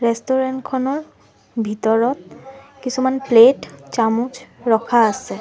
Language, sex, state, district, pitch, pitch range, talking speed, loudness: Assamese, female, Assam, Sonitpur, 255 Hz, 230-260 Hz, 80 wpm, -18 LUFS